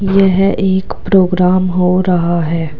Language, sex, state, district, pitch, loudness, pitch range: Hindi, male, Uttar Pradesh, Saharanpur, 185 Hz, -13 LUFS, 180-190 Hz